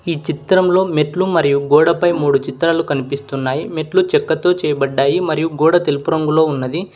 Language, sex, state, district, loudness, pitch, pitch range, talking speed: Telugu, male, Telangana, Hyderabad, -16 LUFS, 160 Hz, 140-175 Hz, 145 wpm